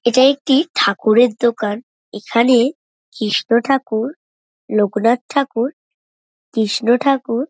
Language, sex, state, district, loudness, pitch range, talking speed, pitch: Bengali, female, West Bengal, North 24 Parganas, -16 LUFS, 220-270 Hz, 90 wpm, 240 Hz